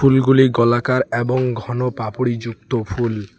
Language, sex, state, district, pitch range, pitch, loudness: Bengali, male, West Bengal, Alipurduar, 115-130 Hz, 120 Hz, -18 LUFS